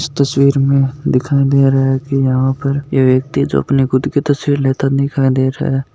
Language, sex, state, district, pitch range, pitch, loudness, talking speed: Hindi, male, Rajasthan, Nagaur, 130-140 Hz, 135 Hz, -14 LUFS, 200 wpm